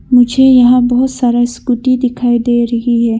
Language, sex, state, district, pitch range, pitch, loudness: Hindi, female, Arunachal Pradesh, Longding, 240-250 Hz, 245 Hz, -11 LUFS